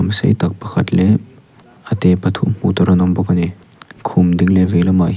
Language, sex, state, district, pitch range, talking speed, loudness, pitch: Mizo, male, Mizoram, Aizawl, 90-95 Hz, 230 wpm, -15 LUFS, 90 Hz